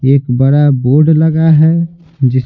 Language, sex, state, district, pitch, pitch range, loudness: Hindi, male, Bihar, Patna, 145 Hz, 130-160 Hz, -10 LUFS